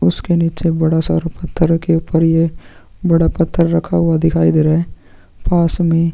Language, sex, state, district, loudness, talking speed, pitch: Hindi, male, Chhattisgarh, Sukma, -15 LUFS, 195 wpm, 165 Hz